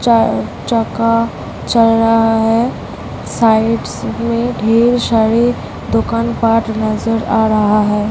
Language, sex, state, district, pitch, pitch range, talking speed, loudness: Hindi, female, Bihar, Samastipur, 225 Hz, 220-230 Hz, 90 wpm, -14 LUFS